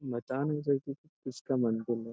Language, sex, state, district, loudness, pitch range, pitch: Hindi, male, Bihar, Jamui, -33 LUFS, 120-140 Hz, 130 Hz